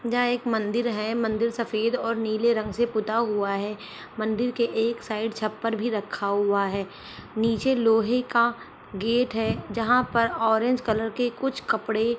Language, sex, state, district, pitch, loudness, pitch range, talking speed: Hindi, female, Jharkhand, Sahebganj, 225 Hz, -25 LUFS, 215-235 Hz, 170 wpm